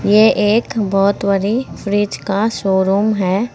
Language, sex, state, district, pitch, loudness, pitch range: Hindi, female, Uttar Pradesh, Saharanpur, 205 Hz, -16 LUFS, 195-215 Hz